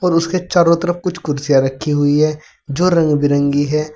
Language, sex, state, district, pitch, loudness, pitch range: Hindi, male, Uttar Pradesh, Saharanpur, 155 Hz, -15 LUFS, 145-175 Hz